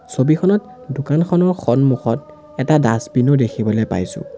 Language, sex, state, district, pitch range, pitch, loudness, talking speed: Assamese, male, Assam, Sonitpur, 125-175 Hz, 145 Hz, -17 LUFS, 110 wpm